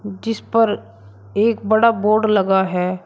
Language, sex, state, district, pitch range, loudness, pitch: Hindi, male, Uttar Pradesh, Shamli, 185-220 Hz, -17 LUFS, 205 Hz